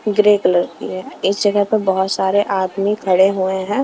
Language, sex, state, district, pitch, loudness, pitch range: Hindi, female, Himachal Pradesh, Shimla, 195 Hz, -17 LUFS, 190-205 Hz